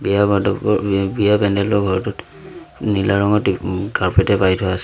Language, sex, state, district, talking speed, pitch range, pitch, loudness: Assamese, male, Assam, Sonitpur, 150 wpm, 95-100 Hz, 100 Hz, -17 LUFS